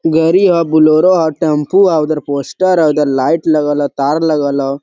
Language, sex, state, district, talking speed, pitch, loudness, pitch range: Hindi, male, Jharkhand, Sahebganj, 200 wpm, 155 Hz, -12 LUFS, 145-165 Hz